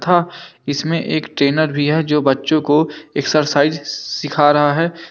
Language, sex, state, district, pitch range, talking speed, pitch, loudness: Hindi, male, Bihar, Muzaffarpur, 145-155 Hz, 150 wpm, 150 Hz, -16 LUFS